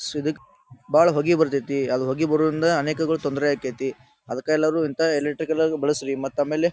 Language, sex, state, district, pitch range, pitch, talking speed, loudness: Kannada, male, Karnataka, Dharwad, 135-160 Hz, 150 Hz, 170 wpm, -23 LUFS